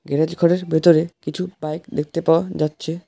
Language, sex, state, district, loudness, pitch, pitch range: Bengali, male, West Bengal, Alipurduar, -20 LUFS, 165 Hz, 155-175 Hz